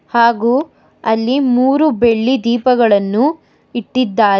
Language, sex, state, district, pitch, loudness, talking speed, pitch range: Kannada, female, Karnataka, Bangalore, 240 Hz, -14 LUFS, 80 wpm, 230-260 Hz